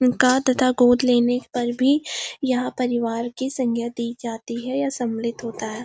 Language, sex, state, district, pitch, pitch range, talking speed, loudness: Hindi, female, Uttarakhand, Uttarkashi, 245 Hz, 235-255 Hz, 105 wpm, -22 LUFS